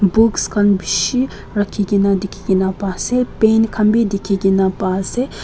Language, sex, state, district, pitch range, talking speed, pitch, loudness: Nagamese, female, Nagaland, Kohima, 195-225 Hz, 145 wpm, 200 Hz, -16 LUFS